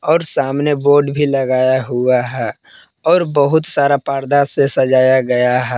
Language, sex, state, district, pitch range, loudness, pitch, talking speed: Hindi, male, Jharkhand, Palamu, 130-145 Hz, -15 LUFS, 135 Hz, 155 wpm